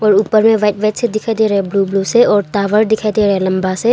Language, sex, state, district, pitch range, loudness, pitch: Hindi, female, Arunachal Pradesh, Longding, 200-220 Hz, -14 LUFS, 210 Hz